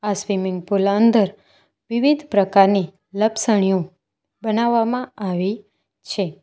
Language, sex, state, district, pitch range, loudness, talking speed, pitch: Gujarati, female, Gujarat, Valsad, 195-225 Hz, -19 LUFS, 95 wpm, 205 Hz